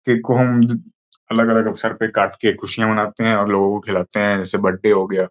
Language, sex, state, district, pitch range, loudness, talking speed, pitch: Hindi, male, Uttar Pradesh, Gorakhpur, 100-115 Hz, -18 LUFS, 225 wpm, 110 Hz